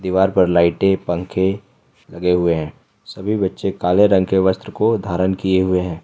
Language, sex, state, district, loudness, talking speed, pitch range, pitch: Hindi, male, Jharkhand, Ranchi, -18 LUFS, 180 wpm, 90-95 Hz, 95 Hz